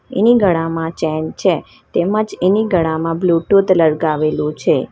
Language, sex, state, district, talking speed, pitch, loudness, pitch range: Gujarati, female, Gujarat, Valsad, 120 wpm, 165 Hz, -16 LUFS, 160-195 Hz